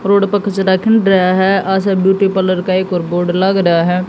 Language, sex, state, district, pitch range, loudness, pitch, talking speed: Hindi, female, Haryana, Jhajjar, 185-195 Hz, -13 LUFS, 190 Hz, 235 wpm